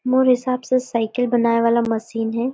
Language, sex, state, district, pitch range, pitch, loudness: Surgujia, female, Chhattisgarh, Sarguja, 230-255 Hz, 240 Hz, -19 LUFS